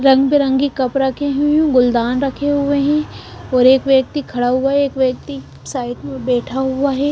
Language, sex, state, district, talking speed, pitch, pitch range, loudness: Hindi, female, Punjab, Kapurthala, 185 wpm, 270 Hz, 260-285 Hz, -16 LUFS